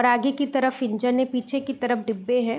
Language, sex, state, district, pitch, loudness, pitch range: Hindi, female, Bihar, East Champaran, 250 Hz, -24 LUFS, 245-265 Hz